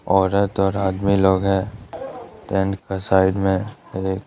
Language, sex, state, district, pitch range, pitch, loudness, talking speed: Hindi, male, Arunachal Pradesh, Lower Dibang Valley, 95-100 Hz, 95 Hz, -20 LUFS, 140 wpm